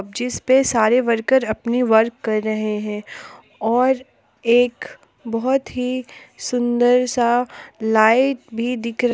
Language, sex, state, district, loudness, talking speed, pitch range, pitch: Hindi, female, Jharkhand, Palamu, -19 LUFS, 120 wpm, 225-250 Hz, 240 Hz